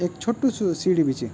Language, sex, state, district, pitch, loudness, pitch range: Garhwali, male, Uttarakhand, Tehri Garhwal, 180 Hz, -23 LUFS, 160-230 Hz